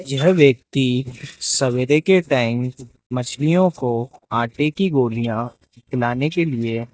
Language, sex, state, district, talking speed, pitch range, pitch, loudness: Hindi, male, Rajasthan, Jaipur, 120 wpm, 120-145 Hz, 130 Hz, -19 LUFS